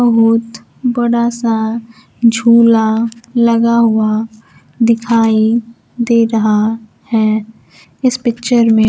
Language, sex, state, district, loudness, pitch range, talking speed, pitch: Hindi, female, Bihar, Kaimur, -13 LUFS, 220-235 Hz, 90 wpm, 230 Hz